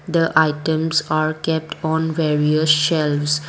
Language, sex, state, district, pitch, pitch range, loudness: English, female, Assam, Kamrup Metropolitan, 155 Hz, 150-160 Hz, -18 LUFS